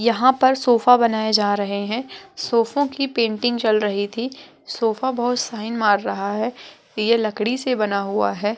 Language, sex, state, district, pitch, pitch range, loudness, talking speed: Hindi, male, Uttar Pradesh, Etah, 230 Hz, 215-245 Hz, -20 LUFS, 175 wpm